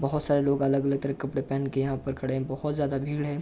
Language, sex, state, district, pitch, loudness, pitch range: Hindi, male, Uttar Pradesh, Jalaun, 135 Hz, -28 LUFS, 135-145 Hz